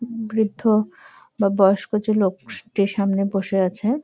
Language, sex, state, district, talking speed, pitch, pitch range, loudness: Bengali, female, West Bengal, Jalpaiguri, 135 wpm, 205 Hz, 195-220 Hz, -21 LUFS